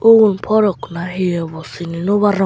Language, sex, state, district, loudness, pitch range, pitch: Chakma, male, Tripura, Unakoti, -16 LUFS, 170-210 Hz, 190 Hz